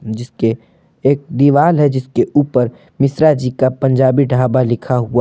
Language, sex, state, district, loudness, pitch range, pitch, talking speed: Hindi, male, Jharkhand, Palamu, -14 LUFS, 125-140 Hz, 130 Hz, 150 wpm